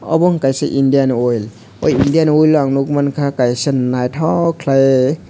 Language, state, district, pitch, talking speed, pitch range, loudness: Kokborok, Tripura, West Tripura, 140 Hz, 170 wpm, 130-155 Hz, -14 LUFS